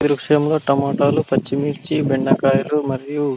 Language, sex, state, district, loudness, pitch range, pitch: Telugu, male, Andhra Pradesh, Anantapur, -18 LUFS, 135-150 Hz, 145 Hz